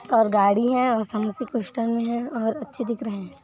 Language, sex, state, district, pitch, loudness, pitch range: Hindi, female, Chhattisgarh, Kabirdham, 230 Hz, -24 LUFS, 215-240 Hz